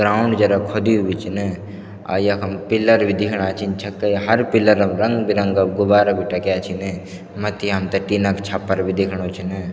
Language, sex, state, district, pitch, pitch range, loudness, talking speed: Garhwali, male, Uttarakhand, Tehri Garhwal, 100 Hz, 95-105 Hz, -19 LUFS, 180 wpm